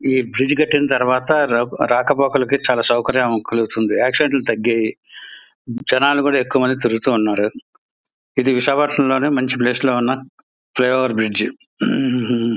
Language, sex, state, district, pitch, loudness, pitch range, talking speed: Telugu, male, Andhra Pradesh, Visakhapatnam, 130 Hz, -17 LUFS, 120-140 Hz, 115 wpm